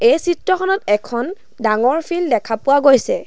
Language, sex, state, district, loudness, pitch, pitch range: Assamese, female, Assam, Sonitpur, -17 LUFS, 300 Hz, 235-370 Hz